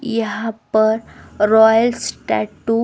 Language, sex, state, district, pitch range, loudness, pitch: Hindi, female, Bihar, West Champaran, 220-225 Hz, -17 LUFS, 220 Hz